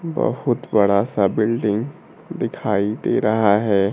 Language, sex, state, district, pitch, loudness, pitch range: Hindi, male, Bihar, Kaimur, 105 Hz, -19 LUFS, 100-115 Hz